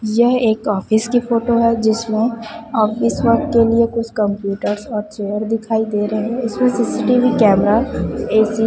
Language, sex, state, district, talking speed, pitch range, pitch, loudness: Hindi, female, Chhattisgarh, Raipur, 165 wpm, 215-235 Hz, 225 Hz, -17 LUFS